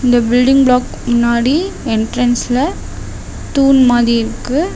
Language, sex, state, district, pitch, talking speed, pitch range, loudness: Tamil, female, Tamil Nadu, Namakkal, 245 Hz, 100 wpm, 235-270 Hz, -13 LUFS